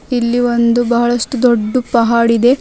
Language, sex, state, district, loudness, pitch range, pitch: Kannada, female, Karnataka, Bidar, -13 LUFS, 235-245 Hz, 240 Hz